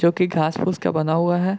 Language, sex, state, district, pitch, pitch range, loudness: Hindi, male, Jharkhand, Sahebganj, 170 Hz, 160-180 Hz, -21 LUFS